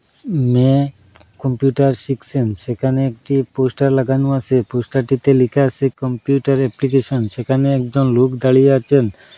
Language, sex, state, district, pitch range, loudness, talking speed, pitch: Bengali, male, Assam, Hailakandi, 125-135 Hz, -16 LUFS, 115 wpm, 135 Hz